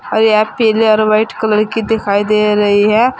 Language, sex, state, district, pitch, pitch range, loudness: Hindi, female, Uttar Pradesh, Saharanpur, 215 Hz, 210-220 Hz, -12 LUFS